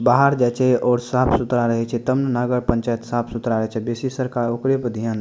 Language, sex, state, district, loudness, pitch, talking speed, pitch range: Maithili, male, Bihar, Madhepura, -20 LUFS, 120 Hz, 240 wpm, 115-130 Hz